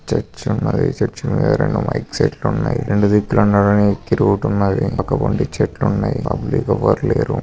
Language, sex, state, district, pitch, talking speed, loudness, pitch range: Telugu, male, Andhra Pradesh, Krishna, 105 Hz, 170 wpm, -17 LUFS, 100-120 Hz